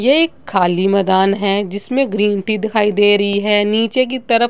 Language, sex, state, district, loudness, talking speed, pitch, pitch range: Hindi, female, Uttar Pradesh, Gorakhpur, -15 LUFS, 215 wpm, 205 Hz, 200-230 Hz